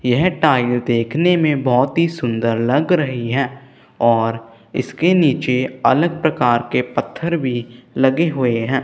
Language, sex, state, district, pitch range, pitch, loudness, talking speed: Hindi, male, Punjab, Kapurthala, 120-155 Hz, 130 Hz, -17 LUFS, 145 wpm